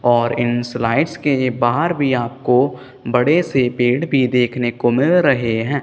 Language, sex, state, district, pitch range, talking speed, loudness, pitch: Hindi, male, Punjab, Kapurthala, 120-140 Hz, 165 wpm, -17 LUFS, 125 Hz